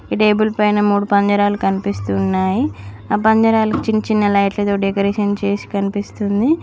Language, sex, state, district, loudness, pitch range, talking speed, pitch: Telugu, female, Telangana, Mahabubabad, -17 LUFS, 195-210 Hz, 135 wpm, 205 Hz